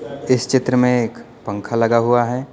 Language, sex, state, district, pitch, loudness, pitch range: Hindi, male, Uttar Pradesh, Lucknow, 120 Hz, -18 LUFS, 115-125 Hz